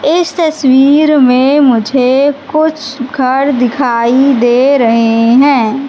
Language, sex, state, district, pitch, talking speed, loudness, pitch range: Hindi, female, Madhya Pradesh, Katni, 270 Hz, 100 wpm, -9 LUFS, 250-285 Hz